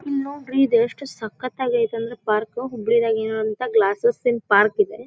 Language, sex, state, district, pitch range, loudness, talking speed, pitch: Kannada, female, Karnataka, Dharwad, 220-255 Hz, -21 LUFS, 165 wpm, 230 Hz